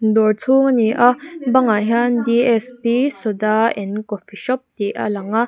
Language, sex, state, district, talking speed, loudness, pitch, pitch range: Mizo, female, Mizoram, Aizawl, 195 wpm, -17 LUFS, 230 Hz, 215-250 Hz